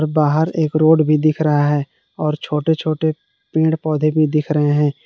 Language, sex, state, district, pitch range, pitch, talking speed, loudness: Hindi, male, Jharkhand, Palamu, 150-160 Hz, 155 Hz, 190 wpm, -17 LUFS